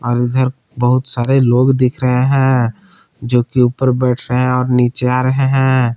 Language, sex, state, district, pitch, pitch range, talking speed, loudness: Hindi, male, Jharkhand, Palamu, 125 Hz, 125-130 Hz, 190 wpm, -14 LUFS